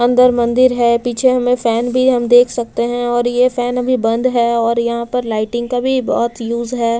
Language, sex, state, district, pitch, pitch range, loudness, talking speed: Hindi, female, Delhi, New Delhi, 240 Hz, 235-250 Hz, -15 LUFS, 220 wpm